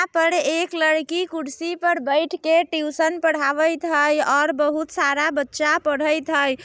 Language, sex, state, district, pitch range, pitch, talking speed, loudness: Bajjika, female, Bihar, Vaishali, 295-330 Hz, 315 Hz, 155 wpm, -20 LUFS